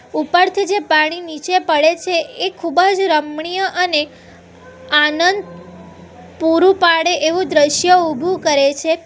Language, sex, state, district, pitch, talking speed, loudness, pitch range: Gujarati, female, Gujarat, Valsad, 335 Hz, 125 wpm, -15 LUFS, 310-365 Hz